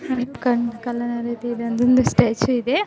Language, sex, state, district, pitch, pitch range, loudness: Kannada, female, Karnataka, Belgaum, 240 Hz, 235-250 Hz, -20 LUFS